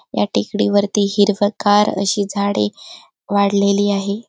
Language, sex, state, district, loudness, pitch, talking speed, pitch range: Marathi, female, Maharashtra, Chandrapur, -17 LUFS, 200 Hz, 100 wpm, 200-205 Hz